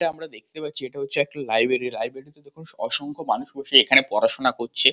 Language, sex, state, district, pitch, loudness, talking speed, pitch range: Bengali, male, West Bengal, Kolkata, 140 Hz, -20 LUFS, 185 wpm, 130-145 Hz